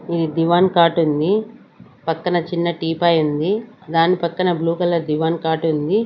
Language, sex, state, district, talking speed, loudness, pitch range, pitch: Telugu, female, Andhra Pradesh, Sri Satya Sai, 150 wpm, -18 LUFS, 160-175 Hz, 170 Hz